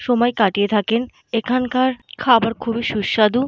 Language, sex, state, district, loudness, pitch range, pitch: Bengali, female, Jharkhand, Jamtara, -19 LUFS, 215-250 Hz, 235 Hz